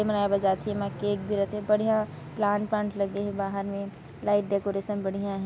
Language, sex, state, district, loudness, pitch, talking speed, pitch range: Chhattisgarhi, female, Chhattisgarh, Raigarh, -28 LUFS, 200 Hz, 155 wpm, 195-205 Hz